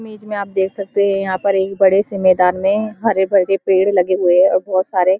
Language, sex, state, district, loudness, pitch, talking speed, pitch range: Hindi, female, Uttarakhand, Uttarkashi, -16 LUFS, 195 Hz, 265 wpm, 185-200 Hz